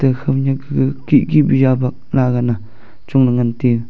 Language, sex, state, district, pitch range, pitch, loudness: Wancho, male, Arunachal Pradesh, Longding, 120-135 Hz, 130 Hz, -16 LUFS